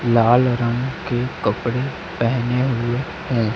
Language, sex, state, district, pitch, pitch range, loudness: Hindi, male, Chhattisgarh, Raipur, 120 Hz, 120-125 Hz, -20 LUFS